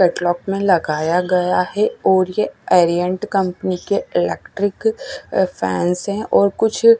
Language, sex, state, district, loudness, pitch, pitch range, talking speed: Hindi, female, Odisha, Nuapada, -18 LUFS, 190 Hz, 180-210 Hz, 130 wpm